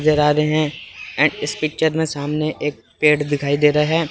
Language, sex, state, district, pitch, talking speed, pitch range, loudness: Hindi, male, Chandigarh, Chandigarh, 150 Hz, 205 wpm, 145-155 Hz, -19 LUFS